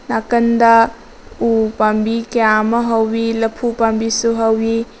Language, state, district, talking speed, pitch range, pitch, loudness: Manipuri, Manipur, Imphal West, 110 wpm, 225-230 Hz, 225 Hz, -15 LUFS